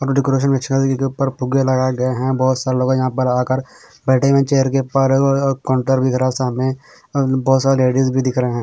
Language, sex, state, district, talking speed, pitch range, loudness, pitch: Hindi, male, Bihar, Patna, 265 wpm, 130-135 Hz, -17 LUFS, 130 Hz